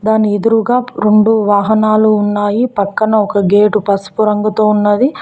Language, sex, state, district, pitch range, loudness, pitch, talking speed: Telugu, female, Telangana, Mahabubabad, 205-220 Hz, -12 LUFS, 215 Hz, 125 wpm